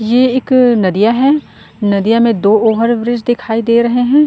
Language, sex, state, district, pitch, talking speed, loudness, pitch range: Hindi, female, Chhattisgarh, Korba, 235 Hz, 170 wpm, -12 LUFS, 220-250 Hz